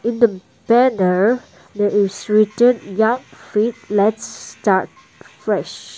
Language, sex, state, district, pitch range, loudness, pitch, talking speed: English, female, Nagaland, Dimapur, 205-235 Hz, -17 LUFS, 215 Hz, 110 wpm